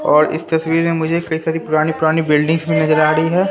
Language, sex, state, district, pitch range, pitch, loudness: Hindi, male, Bihar, Katihar, 155-165 Hz, 160 Hz, -16 LUFS